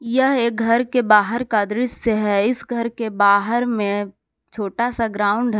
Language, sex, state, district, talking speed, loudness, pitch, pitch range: Hindi, female, Jharkhand, Palamu, 180 wpm, -19 LUFS, 230 Hz, 205-240 Hz